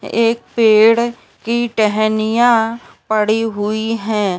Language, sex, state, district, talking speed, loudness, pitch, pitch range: Hindi, female, Uttar Pradesh, Deoria, 95 wpm, -15 LUFS, 225 Hz, 215-230 Hz